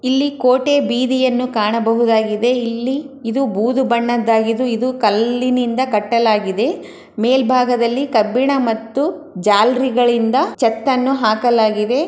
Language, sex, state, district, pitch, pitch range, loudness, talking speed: Kannada, female, Karnataka, Chamarajanagar, 245 Hz, 225-260 Hz, -16 LUFS, 85 wpm